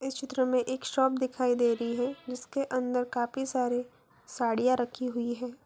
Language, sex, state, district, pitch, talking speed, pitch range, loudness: Hindi, female, Bihar, Gaya, 250 Hz, 180 wpm, 245-260 Hz, -30 LUFS